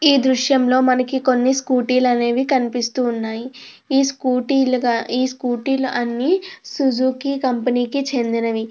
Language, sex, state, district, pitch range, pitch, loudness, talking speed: Telugu, female, Andhra Pradesh, Krishna, 245-270 Hz, 255 Hz, -18 LUFS, 95 wpm